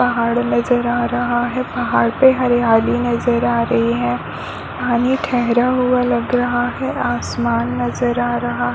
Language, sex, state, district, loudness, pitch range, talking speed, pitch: Hindi, female, Chhattisgarh, Balrampur, -17 LUFS, 225-245 Hz, 160 wpm, 240 Hz